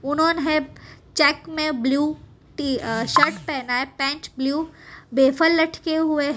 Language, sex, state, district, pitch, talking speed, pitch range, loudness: Hindi, female, Gujarat, Valsad, 295 Hz, 115 wpm, 270-315 Hz, -21 LUFS